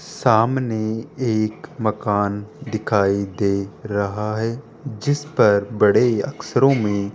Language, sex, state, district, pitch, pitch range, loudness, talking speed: Hindi, male, Rajasthan, Jaipur, 110 Hz, 100-120 Hz, -20 LUFS, 110 wpm